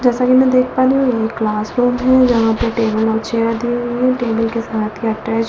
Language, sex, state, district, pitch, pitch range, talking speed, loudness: Hindi, female, Delhi, New Delhi, 230 Hz, 225-250 Hz, 275 wpm, -15 LUFS